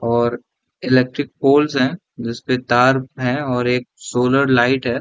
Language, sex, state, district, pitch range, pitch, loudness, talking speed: Hindi, male, Bihar, Sitamarhi, 125-135 Hz, 130 Hz, -18 LUFS, 145 wpm